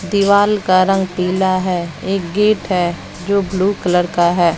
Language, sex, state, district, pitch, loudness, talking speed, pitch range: Hindi, female, Bihar, West Champaran, 185 Hz, -16 LUFS, 170 wpm, 175-200 Hz